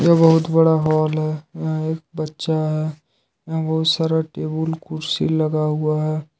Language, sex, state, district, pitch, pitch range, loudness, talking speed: Hindi, male, Jharkhand, Deoghar, 160 Hz, 155-160 Hz, -20 LUFS, 160 wpm